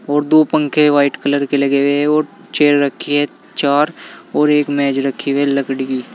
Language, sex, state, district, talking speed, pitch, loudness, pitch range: Hindi, male, Uttar Pradesh, Saharanpur, 225 wpm, 145 Hz, -15 LUFS, 140-150 Hz